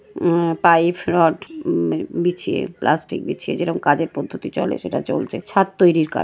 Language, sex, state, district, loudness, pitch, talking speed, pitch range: Bengali, female, West Bengal, Paschim Medinipur, -20 LUFS, 175 Hz, 165 wpm, 170-195 Hz